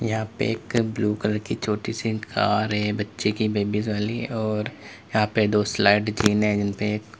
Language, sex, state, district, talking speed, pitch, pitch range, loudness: Hindi, male, Uttar Pradesh, Lalitpur, 175 wpm, 105 Hz, 105-110 Hz, -24 LUFS